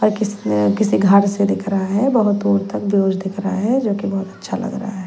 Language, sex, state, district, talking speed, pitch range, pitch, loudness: Hindi, female, Haryana, Jhajjar, 225 wpm, 195-210 Hz, 200 Hz, -18 LUFS